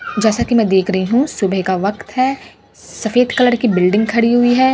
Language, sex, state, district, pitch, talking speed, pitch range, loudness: Hindi, female, Bihar, Katihar, 225 Hz, 215 wpm, 195-245 Hz, -15 LUFS